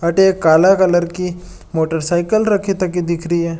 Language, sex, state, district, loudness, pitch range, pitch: Marwari, male, Rajasthan, Nagaur, -16 LUFS, 170-190 Hz, 175 Hz